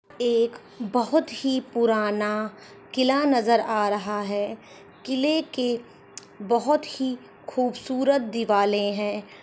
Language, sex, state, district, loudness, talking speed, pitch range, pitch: Hindi, female, Rajasthan, Churu, -24 LUFS, 100 wpm, 210-260 Hz, 235 Hz